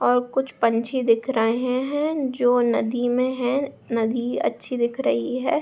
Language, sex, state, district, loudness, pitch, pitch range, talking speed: Hindi, female, Bihar, Saharsa, -23 LUFS, 245 Hz, 235-265 Hz, 160 wpm